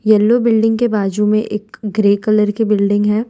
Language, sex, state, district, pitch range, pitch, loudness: Hindi, female, Gujarat, Valsad, 210-225 Hz, 215 Hz, -15 LUFS